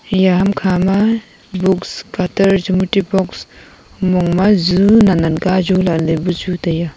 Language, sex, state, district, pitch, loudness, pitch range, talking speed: Wancho, female, Arunachal Pradesh, Longding, 185 Hz, -15 LUFS, 180-195 Hz, 130 wpm